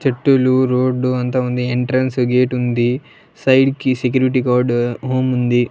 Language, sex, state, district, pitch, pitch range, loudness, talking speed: Telugu, male, Andhra Pradesh, Annamaya, 125 Hz, 125-130 Hz, -16 LUFS, 125 wpm